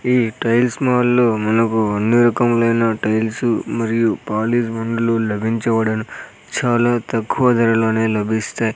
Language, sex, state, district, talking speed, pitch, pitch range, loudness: Telugu, male, Andhra Pradesh, Sri Satya Sai, 105 wpm, 115 Hz, 110-120 Hz, -17 LUFS